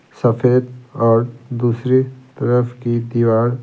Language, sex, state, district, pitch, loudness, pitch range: Hindi, male, Bihar, Patna, 120 Hz, -17 LUFS, 120-125 Hz